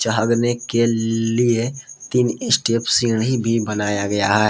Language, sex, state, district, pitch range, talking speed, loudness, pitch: Hindi, male, Jharkhand, Palamu, 110-120 Hz, 135 wpm, -19 LUFS, 115 Hz